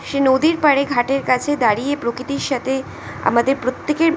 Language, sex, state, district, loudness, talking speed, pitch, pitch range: Bengali, female, West Bengal, North 24 Parganas, -18 LUFS, 145 wpm, 275 Hz, 255-290 Hz